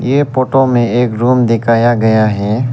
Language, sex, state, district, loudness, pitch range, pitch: Hindi, male, Arunachal Pradesh, Lower Dibang Valley, -12 LUFS, 115-125 Hz, 120 Hz